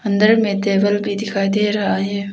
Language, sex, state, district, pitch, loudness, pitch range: Hindi, female, Arunachal Pradesh, Papum Pare, 205 Hz, -17 LUFS, 200-210 Hz